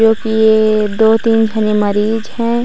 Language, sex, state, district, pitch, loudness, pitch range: Hindi, female, Chhattisgarh, Raigarh, 220 Hz, -13 LUFS, 215-225 Hz